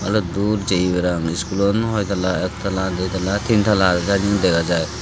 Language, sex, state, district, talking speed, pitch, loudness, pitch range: Chakma, male, Tripura, Dhalai, 155 wpm, 95 Hz, -19 LUFS, 90-100 Hz